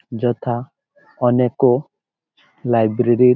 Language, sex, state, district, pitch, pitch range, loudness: Bengali, male, West Bengal, Malda, 125 Hz, 120-125 Hz, -18 LUFS